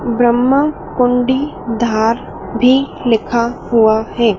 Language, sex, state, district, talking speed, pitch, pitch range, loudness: Hindi, female, Madhya Pradesh, Dhar, 95 wpm, 235 Hz, 225-250 Hz, -14 LUFS